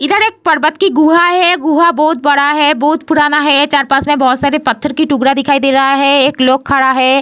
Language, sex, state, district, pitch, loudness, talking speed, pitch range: Hindi, female, Bihar, Vaishali, 290 Hz, -10 LUFS, 235 wpm, 275-315 Hz